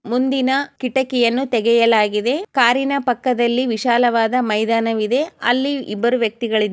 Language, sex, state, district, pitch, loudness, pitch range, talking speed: Kannada, female, Karnataka, Chamarajanagar, 245 Hz, -18 LUFS, 230-260 Hz, 100 wpm